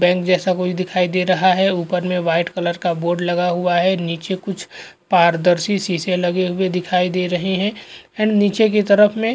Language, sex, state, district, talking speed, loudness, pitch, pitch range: Hindi, male, Goa, North and South Goa, 205 wpm, -18 LUFS, 180 Hz, 175-190 Hz